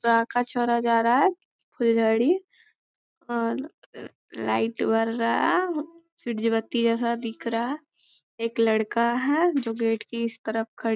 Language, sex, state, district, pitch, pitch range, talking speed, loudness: Hindi, female, Bihar, Begusarai, 235 Hz, 230-290 Hz, 130 wpm, -25 LUFS